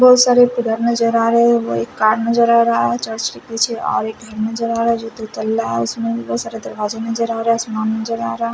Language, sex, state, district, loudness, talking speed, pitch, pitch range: Hindi, male, Punjab, Fazilka, -17 LUFS, 255 wpm, 225 Hz, 220-230 Hz